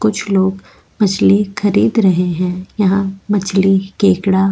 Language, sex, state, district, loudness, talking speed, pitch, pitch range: Hindi, female, Goa, North and South Goa, -15 LUFS, 135 wpm, 195 Hz, 190-200 Hz